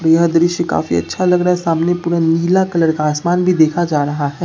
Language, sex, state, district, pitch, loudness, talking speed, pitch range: Hindi, male, Bihar, Katihar, 170 Hz, -15 LUFS, 240 wpm, 155-175 Hz